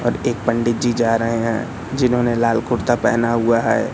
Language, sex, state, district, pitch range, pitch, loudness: Hindi, male, Madhya Pradesh, Katni, 115-120 Hz, 115 Hz, -18 LUFS